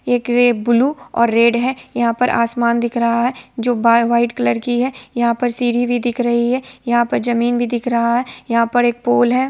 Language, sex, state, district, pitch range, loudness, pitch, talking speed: Hindi, female, Bihar, Sitamarhi, 235-245 Hz, -17 LUFS, 240 Hz, 225 wpm